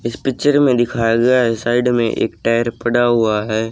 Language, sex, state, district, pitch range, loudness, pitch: Hindi, male, Haryana, Charkhi Dadri, 115-120 Hz, -16 LUFS, 120 Hz